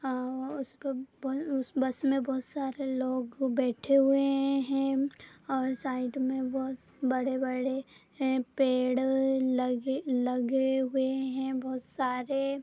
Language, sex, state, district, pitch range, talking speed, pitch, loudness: Hindi, female, Bihar, Madhepura, 260-270 Hz, 125 wpm, 265 Hz, -30 LUFS